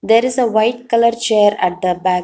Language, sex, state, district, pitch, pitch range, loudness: English, female, Telangana, Hyderabad, 220 Hz, 185-235 Hz, -15 LUFS